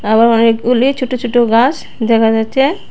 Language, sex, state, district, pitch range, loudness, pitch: Bengali, female, Tripura, West Tripura, 225-255 Hz, -12 LUFS, 235 Hz